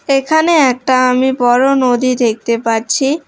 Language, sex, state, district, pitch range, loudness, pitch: Bengali, female, West Bengal, Alipurduar, 245-275 Hz, -12 LUFS, 255 Hz